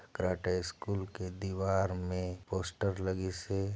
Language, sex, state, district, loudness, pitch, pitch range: Chhattisgarhi, male, Chhattisgarh, Sarguja, -36 LUFS, 95 Hz, 90-95 Hz